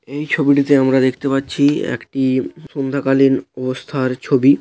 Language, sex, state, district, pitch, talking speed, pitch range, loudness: Bengali, male, West Bengal, Paschim Medinipur, 135 Hz, 130 wpm, 130-140 Hz, -17 LUFS